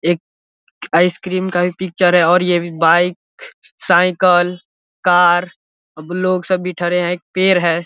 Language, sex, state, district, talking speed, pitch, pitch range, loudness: Hindi, male, Bihar, Vaishali, 155 wpm, 180 Hz, 175-185 Hz, -15 LUFS